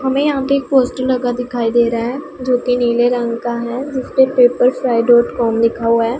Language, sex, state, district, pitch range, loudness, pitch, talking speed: Hindi, female, Punjab, Pathankot, 235-260 Hz, -15 LUFS, 245 Hz, 230 wpm